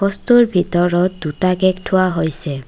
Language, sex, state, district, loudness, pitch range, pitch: Assamese, female, Assam, Kamrup Metropolitan, -15 LUFS, 170-185 Hz, 185 Hz